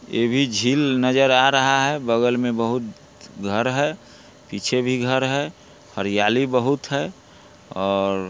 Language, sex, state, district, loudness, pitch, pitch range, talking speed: Hindi, male, Bihar, Muzaffarpur, -20 LUFS, 125 Hz, 115-135 Hz, 145 wpm